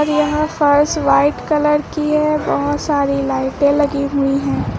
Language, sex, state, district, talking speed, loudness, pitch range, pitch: Hindi, female, Uttar Pradesh, Lucknow, 150 wpm, -16 LUFS, 275-300 Hz, 290 Hz